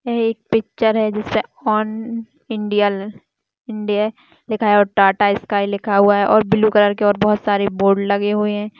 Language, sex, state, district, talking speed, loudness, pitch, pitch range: Hindi, female, Chhattisgarh, Jashpur, 185 wpm, -17 LUFS, 210 Hz, 205-220 Hz